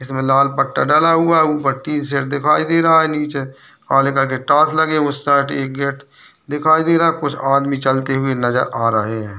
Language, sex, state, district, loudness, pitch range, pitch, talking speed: Hindi, male, Rajasthan, Churu, -16 LUFS, 135-150 Hz, 140 Hz, 180 wpm